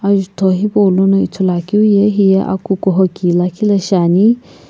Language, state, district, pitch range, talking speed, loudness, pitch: Sumi, Nagaland, Kohima, 185-200 Hz, 155 wpm, -13 LUFS, 195 Hz